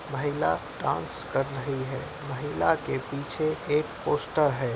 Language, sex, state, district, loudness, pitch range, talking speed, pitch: Hindi, male, Bihar, Darbhanga, -29 LUFS, 135-150 Hz, 140 wpm, 140 Hz